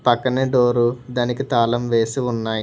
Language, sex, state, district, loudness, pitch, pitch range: Telugu, male, Telangana, Hyderabad, -19 LUFS, 120 Hz, 120-125 Hz